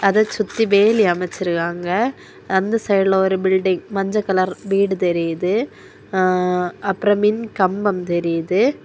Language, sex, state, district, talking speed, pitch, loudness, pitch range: Tamil, female, Tamil Nadu, Kanyakumari, 115 wpm, 190 Hz, -19 LUFS, 180-210 Hz